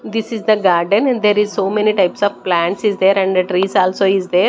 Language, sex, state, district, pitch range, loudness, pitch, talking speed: English, female, Chandigarh, Chandigarh, 185-210 Hz, -15 LUFS, 195 Hz, 255 wpm